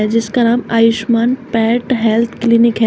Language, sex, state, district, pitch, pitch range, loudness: Hindi, female, Uttar Pradesh, Shamli, 230 Hz, 230-240 Hz, -14 LUFS